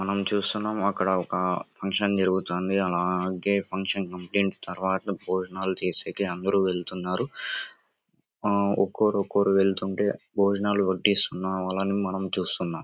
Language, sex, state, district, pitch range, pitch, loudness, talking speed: Telugu, male, Andhra Pradesh, Anantapur, 95-100 Hz, 95 Hz, -26 LUFS, 105 wpm